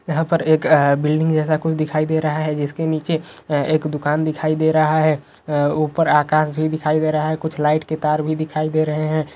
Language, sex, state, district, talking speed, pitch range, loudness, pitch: Magahi, male, Bihar, Gaya, 235 wpm, 150-155 Hz, -19 LUFS, 155 Hz